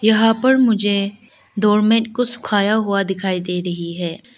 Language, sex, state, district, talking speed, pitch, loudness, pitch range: Hindi, female, Arunachal Pradesh, Lower Dibang Valley, 150 wpm, 210 Hz, -18 LUFS, 190-225 Hz